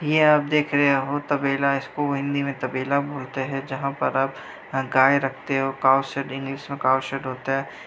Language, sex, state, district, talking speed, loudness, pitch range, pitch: Hindi, female, Bihar, Sitamarhi, 200 wpm, -23 LUFS, 135-140 Hz, 135 Hz